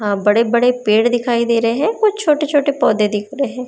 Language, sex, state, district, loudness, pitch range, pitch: Hindi, female, Maharashtra, Chandrapur, -15 LUFS, 215-280 Hz, 240 Hz